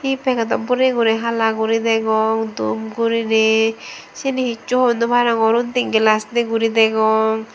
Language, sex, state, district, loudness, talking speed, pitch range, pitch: Chakma, female, Tripura, Dhalai, -17 LUFS, 150 wpm, 220-240 Hz, 225 Hz